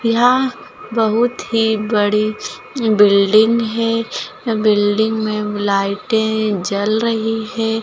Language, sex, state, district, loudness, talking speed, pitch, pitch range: Hindi, female, Rajasthan, Churu, -16 LUFS, 90 wpm, 220 Hz, 210-230 Hz